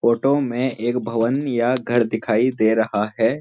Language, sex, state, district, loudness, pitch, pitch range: Hindi, male, Uttarakhand, Uttarkashi, -20 LUFS, 120 Hz, 110-125 Hz